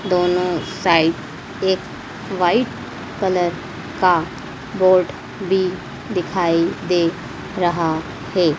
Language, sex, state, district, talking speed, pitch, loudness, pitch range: Hindi, female, Madhya Pradesh, Dhar, 85 wpm, 180 Hz, -19 LUFS, 165-185 Hz